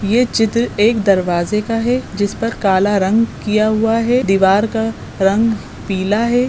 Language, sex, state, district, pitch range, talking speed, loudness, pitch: Hindi, female, Goa, North and South Goa, 200-230 Hz, 165 wpm, -16 LUFS, 215 Hz